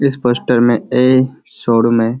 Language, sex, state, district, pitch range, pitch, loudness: Hindi, male, Bihar, Kishanganj, 115-130 Hz, 120 Hz, -14 LUFS